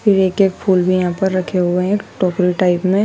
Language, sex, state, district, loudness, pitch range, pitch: Hindi, female, Madhya Pradesh, Dhar, -16 LUFS, 180-195 Hz, 185 Hz